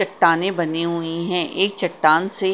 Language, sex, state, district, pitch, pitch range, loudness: Hindi, female, Punjab, Kapurthala, 175 Hz, 165-190 Hz, -20 LUFS